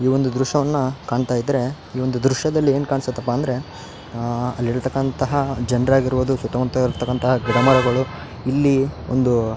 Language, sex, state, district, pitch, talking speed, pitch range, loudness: Kannada, male, Karnataka, Raichur, 130 Hz, 130 wpm, 125-135 Hz, -20 LUFS